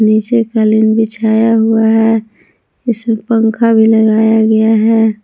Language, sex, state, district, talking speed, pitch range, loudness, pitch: Hindi, female, Jharkhand, Palamu, 125 wpm, 220-225 Hz, -11 LUFS, 220 Hz